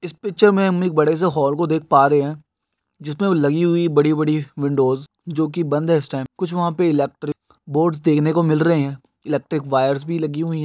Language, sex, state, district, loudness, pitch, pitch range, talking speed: Hindi, male, Andhra Pradesh, Guntur, -19 LUFS, 155 Hz, 145-170 Hz, 230 wpm